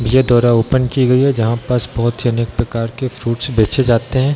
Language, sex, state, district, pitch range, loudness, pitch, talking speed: Hindi, male, Bihar, Darbhanga, 115-130 Hz, -15 LUFS, 120 Hz, 235 wpm